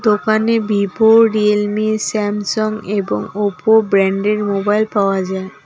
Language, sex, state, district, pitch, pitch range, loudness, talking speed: Bengali, female, West Bengal, Alipurduar, 210 Hz, 200-215 Hz, -15 LUFS, 115 wpm